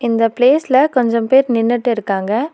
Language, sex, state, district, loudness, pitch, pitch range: Tamil, female, Tamil Nadu, Nilgiris, -14 LUFS, 240 Hz, 230-260 Hz